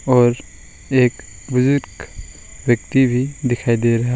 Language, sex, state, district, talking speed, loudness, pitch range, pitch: Hindi, male, West Bengal, Alipurduar, 115 wpm, -18 LUFS, 100-125 Hz, 120 Hz